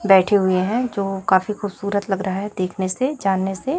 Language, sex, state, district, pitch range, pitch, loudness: Hindi, female, Chhattisgarh, Raipur, 190-205 Hz, 195 Hz, -20 LUFS